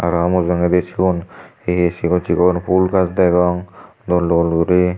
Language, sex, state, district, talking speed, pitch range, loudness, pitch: Chakma, male, Tripura, Dhalai, 155 wpm, 85-90 Hz, -16 LUFS, 90 Hz